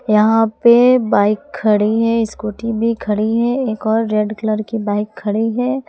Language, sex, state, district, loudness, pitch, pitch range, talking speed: Hindi, female, Jharkhand, Palamu, -16 LUFS, 220 Hz, 215-230 Hz, 175 wpm